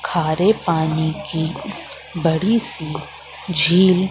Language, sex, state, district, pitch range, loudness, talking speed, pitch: Hindi, female, Madhya Pradesh, Katni, 160-185 Hz, -18 LUFS, 85 wpm, 170 Hz